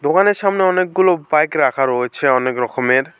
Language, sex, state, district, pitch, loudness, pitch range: Bengali, male, West Bengal, Alipurduar, 150 Hz, -16 LUFS, 130-185 Hz